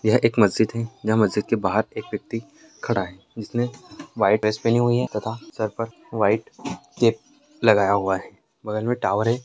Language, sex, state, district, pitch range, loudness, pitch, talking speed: Hindi, male, Maharashtra, Sindhudurg, 105-120 Hz, -23 LUFS, 110 Hz, 185 wpm